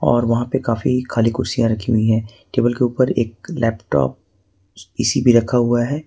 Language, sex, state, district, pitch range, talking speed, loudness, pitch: Hindi, male, Jharkhand, Ranchi, 110-125 Hz, 190 wpm, -18 LUFS, 120 Hz